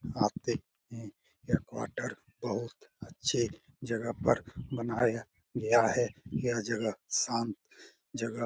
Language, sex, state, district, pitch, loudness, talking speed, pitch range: Hindi, male, Bihar, Lakhisarai, 115 Hz, -33 LUFS, 115 wpm, 115-120 Hz